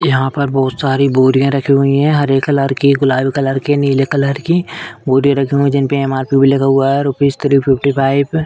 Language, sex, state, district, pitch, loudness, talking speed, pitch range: Hindi, female, Uttar Pradesh, Etah, 140 Hz, -13 LUFS, 235 wpm, 135-140 Hz